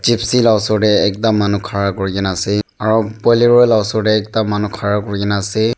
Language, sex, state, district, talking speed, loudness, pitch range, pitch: Nagamese, male, Nagaland, Dimapur, 195 wpm, -15 LUFS, 100-110 Hz, 105 Hz